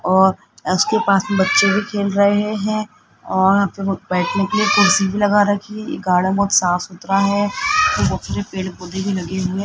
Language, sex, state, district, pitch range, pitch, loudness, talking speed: Hindi, male, Rajasthan, Jaipur, 185-205 Hz, 195 Hz, -17 LUFS, 205 wpm